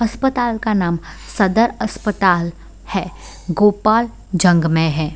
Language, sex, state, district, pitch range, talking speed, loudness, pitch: Hindi, female, Bihar, Sitamarhi, 170-220 Hz, 115 wpm, -17 LUFS, 200 Hz